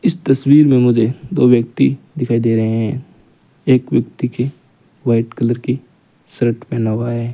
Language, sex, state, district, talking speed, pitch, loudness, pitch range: Hindi, male, Rajasthan, Bikaner, 165 wpm, 120 Hz, -16 LUFS, 115-130 Hz